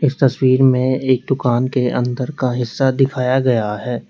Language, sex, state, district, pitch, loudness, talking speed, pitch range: Hindi, male, Uttar Pradesh, Lalitpur, 130 Hz, -17 LUFS, 160 wpm, 125-130 Hz